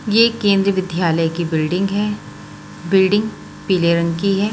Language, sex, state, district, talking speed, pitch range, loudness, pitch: Hindi, female, Chhattisgarh, Raipur, 145 wpm, 170-205 Hz, -17 LUFS, 195 Hz